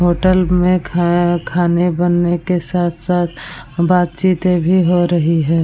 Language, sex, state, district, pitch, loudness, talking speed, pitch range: Hindi, female, Bihar, Vaishali, 175 Hz, -15 LUFS, 140 wpm, 170-180 Hz